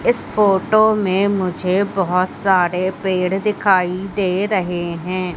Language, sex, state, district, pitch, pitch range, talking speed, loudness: Hindi, female, Madhya Pradesh, Katni, 190 Hz, 180-200 Hz, 125 wpm, -18 LUFS